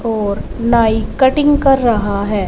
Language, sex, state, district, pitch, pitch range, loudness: Hindi, female, Punjab, Fazilka, 230 Hz, 210-260 Hz, -14 LUFS